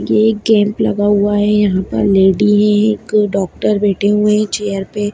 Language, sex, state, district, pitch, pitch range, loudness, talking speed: Hindi, female, Bihar, Darbhanga, 205 Hz, 200-210 Hz, -13 LUFS, 185 wpm